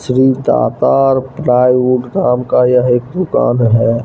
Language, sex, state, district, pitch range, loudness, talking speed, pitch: Hindi, male, Jharkhand, Deoghar, 125-130 Hz, -12 LUFS, 135 wpm, 125 Hz